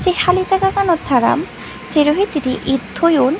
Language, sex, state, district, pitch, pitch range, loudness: Chakma, female, Tripura, Unakoti, 335 Hz, 290-375 Hz, -16 LUFS